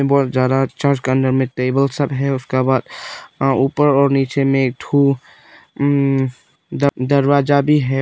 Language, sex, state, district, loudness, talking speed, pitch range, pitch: Hindi, male, Nagaland, Kohima, -17 LUFS, 165 wpm, 130-140 Hz, 135 Hz